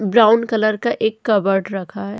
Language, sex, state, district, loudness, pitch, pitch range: Hindi, female, Goa, North and South Goa, -17 LUFS, 215 Hz, 200-220 Hz